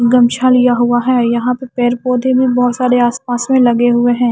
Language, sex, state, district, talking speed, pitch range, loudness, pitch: Hindi, female, Haryana, Charkhi Dadri, 220 wpm, 240-250 Hz, -13 LUFS, 245 Hz